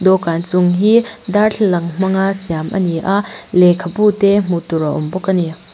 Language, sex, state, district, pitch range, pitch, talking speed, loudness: Mizo, female, Mizoram, Aizawl, 170-200 Hz, 185 Hz, 190 wpm, -15 LUFS